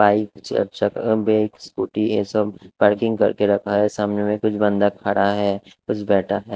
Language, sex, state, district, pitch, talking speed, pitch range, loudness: Hindi, male, Delhi, New Delhi, 105 Hz, 165 wpm, 100-105 Hz, -20 LUFS